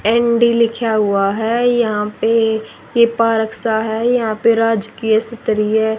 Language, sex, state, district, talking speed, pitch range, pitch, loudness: Hindi, female, Haryana, Rohtak, 140 wpm, 220-230 Hz, 225 Hz, -16 LUFS